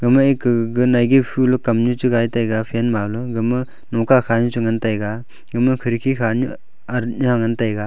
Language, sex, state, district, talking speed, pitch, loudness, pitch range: Wancho, male, Arunachal Pradesh, Longding, 150 wpm, 120 Hz, -18 LUFS, 115-125 Hz